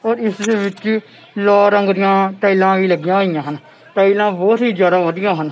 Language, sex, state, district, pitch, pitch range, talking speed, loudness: Punjabi, male, Punjab, Kapurthala, 195 Hz, 185-205 Hz, 185 wpm, -15 LUFS